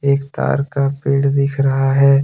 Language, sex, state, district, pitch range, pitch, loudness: Hindi, male, Jharkhand, Deoghar, 135-140 Hz, 140 Hz, -16 LUFS